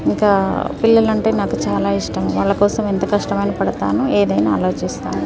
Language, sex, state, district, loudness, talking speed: Telugu, female, Telangana, Nalgonda, -17 LUFS, 160 wpm